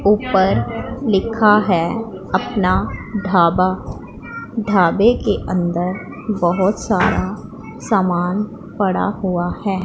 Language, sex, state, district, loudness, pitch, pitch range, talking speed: Hindi, female, Punjab, Pathankot, -18 LUFS, 195 Hz, 180-210 Hz, 85 wpm